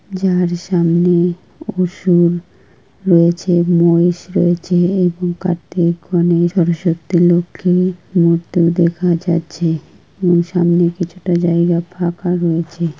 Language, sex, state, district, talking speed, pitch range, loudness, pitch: Bengali, female, West Bengal, Kolkata, 90 wpm, 170-180 Hz, -15 LUFS, 175 Hz